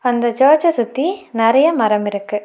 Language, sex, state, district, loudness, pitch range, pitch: Tamil, female, Tamil Nadu, Nilgiris, -15 LUFS, 220-300 Hz, 240 Hz